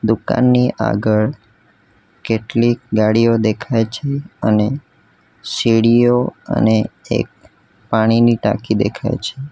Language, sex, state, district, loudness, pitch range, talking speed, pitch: Gujarati, male, Gujarat, Valsad, -16 LUFS, 110-120 Hz, 90 wpm, 115 Hz